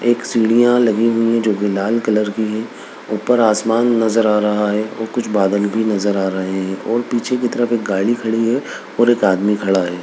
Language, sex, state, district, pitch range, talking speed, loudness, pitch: Hindi, male, Bihar, Begusarai, 105-120 Hz, 220 wpm, -17 LUFS, 110 Hz